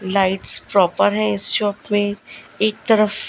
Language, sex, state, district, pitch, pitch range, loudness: Hindi, female, Gujarat, Gandhinagar, 200 Hz, 185-210 Hz, -18 LUFS